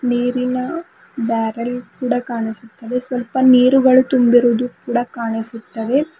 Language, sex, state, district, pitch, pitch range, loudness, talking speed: Kannada, female, Karnataka, Bidar, 245 Hz, 230-255 Hz, -17 LUFS, 85 wpm